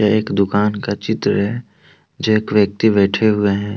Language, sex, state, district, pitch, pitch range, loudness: Hindi, male, Jharkhand, Deoghar, 105 Hz, 100-110 Hz, -17 LUFS